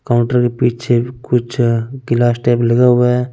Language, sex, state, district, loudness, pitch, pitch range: Hindi, male, Punjab, Fazilka, -15 LUFS, 120 Hz, 120-125 Hz